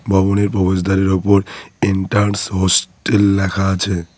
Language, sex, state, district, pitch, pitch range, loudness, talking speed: Bengali, male, West Bengal, Cooch Behar, 95 Hz, 95-100 Hz, -16 LUFS, 100 wpm